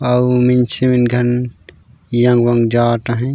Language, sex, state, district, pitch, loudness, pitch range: Chhattisgarhi, male, Chhattisgarh, Raigarh, 120 Hz, -14 LUFS, 120-125 Hz